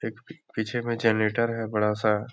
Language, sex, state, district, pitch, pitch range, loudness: Hindi, male, Bihar, Darbhanga, 115 Hz, 110-115 Hz, -26 LUFS